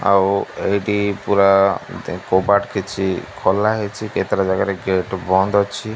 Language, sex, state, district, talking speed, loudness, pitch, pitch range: Odia, male, Odisha, Malkangiri, 130 wpm, -18 LUFS, 100 Hz, 95-100 Hz